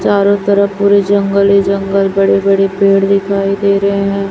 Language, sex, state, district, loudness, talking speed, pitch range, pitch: Hindi, male, Chhattisgarh, Raipur, -11 LUFS, 180 wpm, 195-200 Hz, 200 Hz